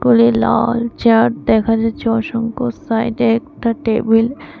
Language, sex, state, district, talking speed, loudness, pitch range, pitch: Bengali, female, Tripura, West Tripura, 115 wpm, -16 LUFS, 225-235 Hz, 230 Hz